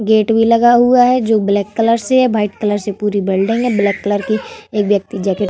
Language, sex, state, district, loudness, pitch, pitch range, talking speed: Hindi, female, Uttar Pradesh, Varanasi, -14 LUFS, 215 Hz, 205-230 Hz, 250 wpm